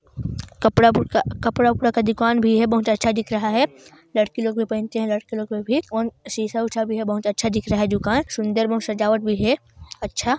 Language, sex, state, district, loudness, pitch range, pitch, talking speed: Hindi, male, Chhattisgarh, Sarguja, -21 LUFS, 215-230 Hz, 225 Hz, 200 wpm